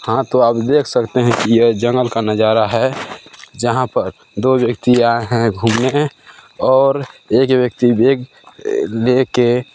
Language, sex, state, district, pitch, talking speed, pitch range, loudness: Hindi, male, Chhattisgarh, Balrampur, 120 Hz, 160 wpm, 115-130 Hz, -15 LUFS